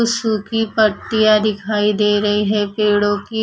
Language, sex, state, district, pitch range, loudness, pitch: Hindi, female, Odisha, Khordha, 205-220 Hz, -16 LUFS, 210 Hz